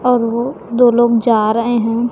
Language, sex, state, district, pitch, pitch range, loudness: Hindi, female, Chhattisgarh, Raipur, 235 Hz, 230-240 Hz, -14 LUFS